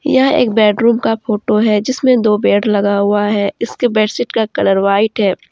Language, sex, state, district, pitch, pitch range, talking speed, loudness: Hindi, female, Jharkhand, Deoghar, 215 Hz, 205-230 Hz, 195 wpm, -14 LUFS